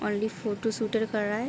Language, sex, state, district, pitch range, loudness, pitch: Hindi, female, Bihar, Araria, 210-225 Hz, -29 LUFS, 220 Hz